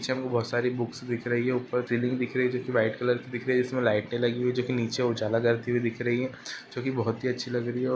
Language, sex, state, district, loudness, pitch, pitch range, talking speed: Hindi, male, Uttar Pradesh, Ghazipur, -28 LUFS, 125 Hz, 120-125 Hz, 315 wpm